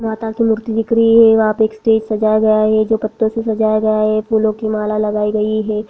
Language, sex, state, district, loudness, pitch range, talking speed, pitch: Hindi, female, Bihar, Saharsa, -15 LUFS, 215-220 Hz, 225 wpm, 220 Hz